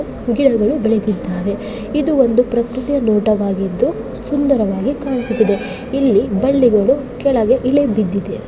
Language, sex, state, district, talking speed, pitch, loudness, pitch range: Kannada, female, Karnataka, Shimoga, 90 wpm, 240 Hz, -16 LUFS, 215-270 Hz